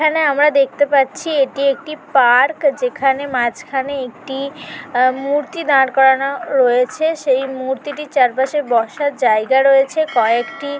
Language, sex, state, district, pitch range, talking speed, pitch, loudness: Bengali, female, West Bengal, North 24 Parganas, 260-290 Hz, 130 wpm, 270 Hz, -16 LUFS